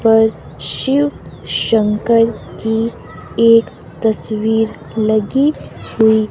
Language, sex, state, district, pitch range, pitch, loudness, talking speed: Hindi, female, Himachal Pradesh, Shimla, 215-230 Hz, 225 Hz, -15 LUFS, 75 wpm